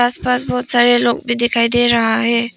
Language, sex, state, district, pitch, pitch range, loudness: Hindi, female, Arunachal Pradesh, Papum Pare, 240 Hz, 235-245 Hz, -14 LUFS